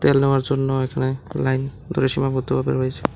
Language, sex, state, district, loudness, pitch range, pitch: Bengali, male, Tripura, West Tripura, -21 LUFS, 130-135 Hz, 130 Hz